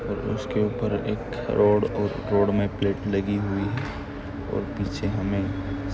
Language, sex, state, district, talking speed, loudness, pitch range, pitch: Hindi, male, Maharashtra, Nagpur, 150 wpm, -26 LUFS, 95-105 Hz, 100 Hz